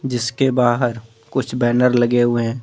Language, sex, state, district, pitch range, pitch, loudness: Hindi, male, Jharkhand, Deoghar, 120-125 Hz, 120 Hz, -18 LUFS